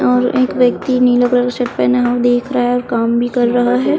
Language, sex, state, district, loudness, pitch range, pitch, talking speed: Hindi, female, Chhattisgarh, Kabirdham, -14 LUFS, 240-250 Hz, 245 Hz, 270 wpm